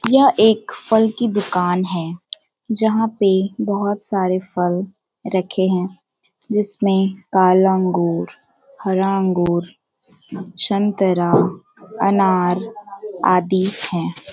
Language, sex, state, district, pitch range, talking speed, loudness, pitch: Hindi, female, Bihar, Jamui, 185-210 Hz, 90 wpm, -18 LUFS, 190 Hz